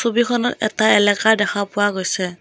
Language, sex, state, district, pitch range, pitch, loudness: Assamese, female, Assam, Kamrup Metropolitan, 200-220 Hz, 205 Hz, -17 LUFS